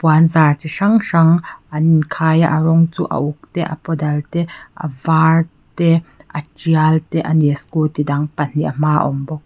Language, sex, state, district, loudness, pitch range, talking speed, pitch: Mizo, female, Mizoram, Aizawl, -16 LUFS, 150-165 Hz, 210 wpm, 160 Hz